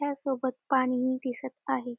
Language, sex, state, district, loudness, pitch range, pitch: Marathi, female, Maharashtra, Dhule, -30 LUFS, 255-270 Hz, 260 Hz